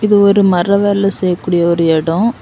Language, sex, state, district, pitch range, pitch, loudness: Tamil, female, Tamil Nadu, Kanyakumari, 175-200 Hz, 190 Hz, -12 LUFS